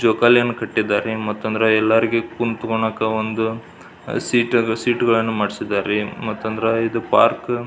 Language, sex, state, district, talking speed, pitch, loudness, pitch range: Kannada, male, Karnataka, Belgaum, 115 wpm, 110 Hz, -19 LUFS, 110-115 Hz